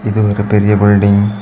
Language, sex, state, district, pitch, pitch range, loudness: Tamil, male, Tamil Nadu, Kanyakumari, 105 Hz, 100-105 Hz, -11 LUFS